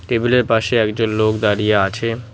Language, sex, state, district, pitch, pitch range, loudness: Bengali, male, West Bengal, Cooch Behar, 110 Hz, 105-115 Hz, -17 LUFS